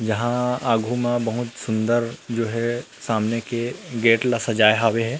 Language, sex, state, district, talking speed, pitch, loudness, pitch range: Chhattisgarhi, male, Chhattisgarh, Rajnandgaon, 160 wpm, 115 Hz, -22 LUFS, 115-120 Hz